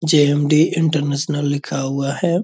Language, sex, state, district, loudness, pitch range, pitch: Hindi, male, Bihar, Purnia, -18 LUFS, 140-160 Hz, 145 Hz